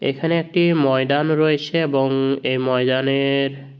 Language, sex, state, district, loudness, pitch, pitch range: Bengali, male, West Bengal, Jhargram, -19 LUFS, 140 Hz, 135-155 Hz